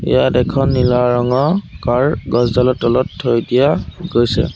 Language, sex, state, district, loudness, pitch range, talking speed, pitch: Assamese, male, Assam, Sonitpur, -15 LUFS, 120-135 Hz, 145 wpm, 125 Hz